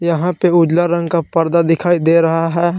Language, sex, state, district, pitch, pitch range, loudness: Hindi, male, Jharkhand, Palamu, 170 Hz, 165-175 Hz, -14 LUFS